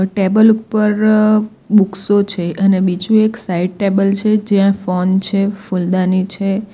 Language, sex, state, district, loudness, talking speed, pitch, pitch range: Gujarati, female, Gujarat, Valsad, -14 LUFS, 135 wpm, 200 Hz, 190-215 Hz